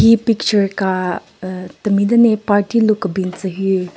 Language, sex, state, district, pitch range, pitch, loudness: Rengma, female, Nagaland, Kohima, 185-215 Hz, 200 Hz, -16 LUFS